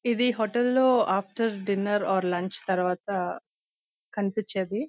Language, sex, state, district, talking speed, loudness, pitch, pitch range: Telugu, female, Andhra Pradesh, Visakhapatnam, 110 wpm, -26 LUFS, 200 Hz, 190-230 Hz